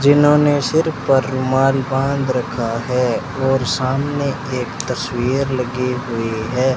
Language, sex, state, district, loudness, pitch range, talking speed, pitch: Hindi, male, Rajasthan, Bikaner, -18 LUFS, 125-135 Hz, 125 wpm, 130 Hz